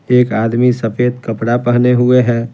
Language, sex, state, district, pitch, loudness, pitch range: Hindi, male, Bihar, Patna, 120 Hz, -13 LUFS, 115-125 Hz